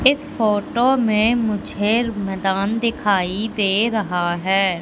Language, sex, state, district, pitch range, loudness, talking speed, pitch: Hindi, female, Madhya Pradesh, Katni, 195-230 Hz, -19 LUFS, 110 wpm, 210 Hz